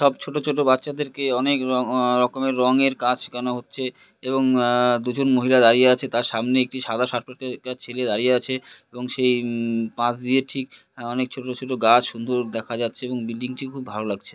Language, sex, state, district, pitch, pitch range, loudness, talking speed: Bengali, male, West Bengal, Purulia, 125 Hz, 120-130 Hz, -22 LUFS, 165 wpm